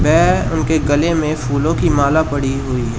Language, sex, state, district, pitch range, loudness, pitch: Hindi, male, Uttar Pradesh, Shamli, 135-160 Hz, -16 LUFS, 145 Hz